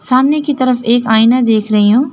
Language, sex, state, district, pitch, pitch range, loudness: Hindi, female, West Bengal, Alipurduar, 240 Hz, 220-260 Hz, -11 LUFS